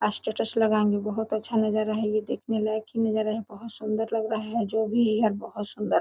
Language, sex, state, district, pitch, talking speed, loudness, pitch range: Hindi, female, Jharkhand, Sahebganj, 215 Hz, 210 wpm, -27 LUFS, 215-225 Hz